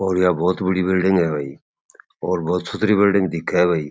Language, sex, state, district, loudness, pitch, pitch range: Marwari, male, Rajasthan, Churu, -19 LUFS, 90 Hz, 85-95 Hz